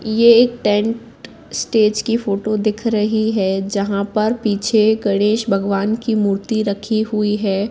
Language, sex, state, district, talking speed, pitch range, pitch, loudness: Hindi, female, Madhya Pradesh, Katni, 150 wpm, 200-220 Hz, 215 Hz, -17 LUFS